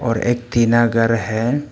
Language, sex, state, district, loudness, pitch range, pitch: Hindi, male, Arunachal Pradesh, Papum Pare, -17 LUFS, 115-120 Hz, 120 Hz